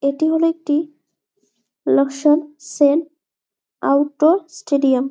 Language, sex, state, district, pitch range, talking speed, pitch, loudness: Bengali, female, West Bengal, Malda, 280-320 Hz, 80 wpm, 300 Hz, -18 LUFS